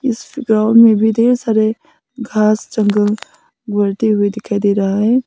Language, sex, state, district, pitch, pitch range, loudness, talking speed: Hindi, female, Nagaland, Kohima, 220 Hz, 210-235 Hz, -14 LUFS, 160 wpm